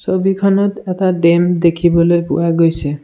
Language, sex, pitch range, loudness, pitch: Assamese, male, 170-185 Hz, -14 LUFS, 170 Hz